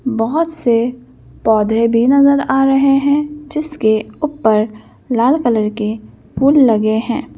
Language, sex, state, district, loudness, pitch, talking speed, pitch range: Hindi, female, Madhya Pradesh, Bhopal, -14 LUFS, 245 Hz, 130 wpm, 220-280 Hz